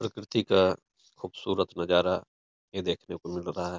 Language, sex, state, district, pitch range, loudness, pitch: Hindi, male, Uttar Pradesh, Etah, 85-95 Hz, -29 LUFS, 90 Hz